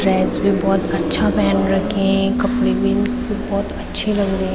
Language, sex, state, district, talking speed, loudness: Hindi, female, Uttarakhand, Tehri Garhwal, 210 wpm, -18 LUFS